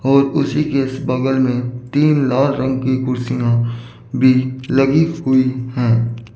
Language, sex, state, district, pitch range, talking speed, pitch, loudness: Hindi, male, Chandigarh, Chandigarh, 125-135 Hz, 130 wpm, 130 Hz, -17 LUFS